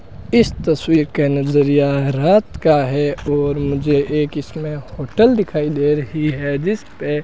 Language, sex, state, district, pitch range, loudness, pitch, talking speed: Hindi, male, Rajasthan, Bikaner, 145-155 Hz, -17 LUFS, 150 Hz, 155 wpm